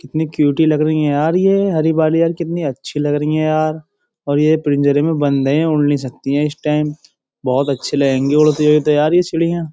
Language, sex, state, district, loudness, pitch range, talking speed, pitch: Hindi, male, Uttar Pradesh, Jyotiba Phule Nagar, -16 LUFS, 145-160 Hz, 235 wpm, 150 Hz